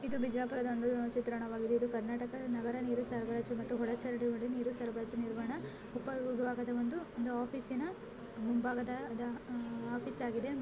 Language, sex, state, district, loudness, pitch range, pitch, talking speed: Kannada, female, Karnataka, Bijapur, -38 LUFS, 235-250 Hz, 240 Hz, 115 wpm